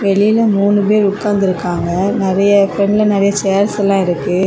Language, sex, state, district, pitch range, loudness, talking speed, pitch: Tamil, female, Tamil Nadu, Kanyakumari, 190-205 Hz, -13 LUFS, 105 wpm, 200 Hz